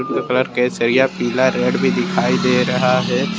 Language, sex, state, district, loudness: Hindi, male, Jharkhand, Deoghar, -17 LUFS